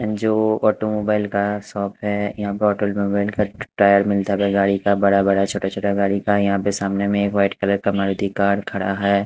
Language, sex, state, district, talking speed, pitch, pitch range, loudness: Hindi, male, Haryana, Charkhi Dadri, 195 wpm, 100 Hz, 100-105 Hz, -20 LUFS